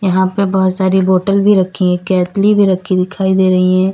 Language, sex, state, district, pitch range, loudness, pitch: Hindi, female, Uttar Pradesh, Lalitpur, 185-195 Hz, -13 LUFS, 190 Hz